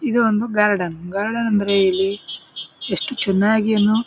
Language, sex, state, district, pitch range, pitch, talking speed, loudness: Kannada, male, Karnataka, Bijapur, 195-220 Hz, 210 Hz, 120 wpm, -19 LUFS